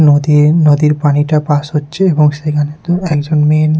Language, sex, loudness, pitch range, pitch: Bengali, male, -12 LUFS, 150-155 Hz, 150 Hz